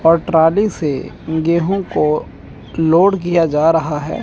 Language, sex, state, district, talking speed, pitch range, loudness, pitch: Hindi, male, Chandigarh, Chandigarh, 140 wpm, 150-170 Hz, -15 LUFS, 160 Hz